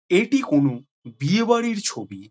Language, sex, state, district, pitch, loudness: Bengali, male, West Bengal, Jhargram, 145 Hz, -21 LUFS